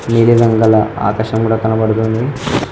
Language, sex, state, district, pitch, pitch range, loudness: Telugu, male, Telangana, Mahabubabad, 110 Hz, 110-115 Hz, -13 LUFS